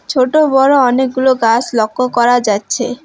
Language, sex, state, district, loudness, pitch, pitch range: Bengali, female, West Bengal, Alipurduar, -12 LUFS, 255 Hz, 240-265 Hz